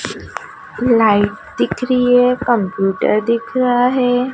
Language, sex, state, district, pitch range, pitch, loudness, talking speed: Hindi, female, Madhya Pradesh, Dhar, 210-250 Hz, 240 Hz, -15 LUFS, 110 wpm